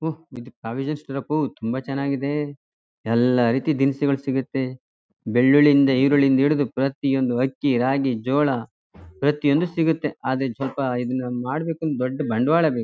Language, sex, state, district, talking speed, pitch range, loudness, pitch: Kannada, male, Karnataka, Chamarajanagar, 155 wpm, 125-145 Hz, -22 LUFS, 135 Hz